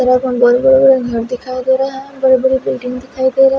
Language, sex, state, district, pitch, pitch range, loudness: Hindi, female, Himachal Pradesh, Shimla, 260 Hz, 250-265 Hz, -13 LUFS